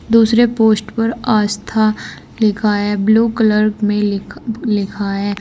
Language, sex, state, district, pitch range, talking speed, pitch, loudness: Hindi, female, Uttar Pradesh, Saharanpur, 205-225 Hz, 135 wpm, 215 Hz, -15 LUFS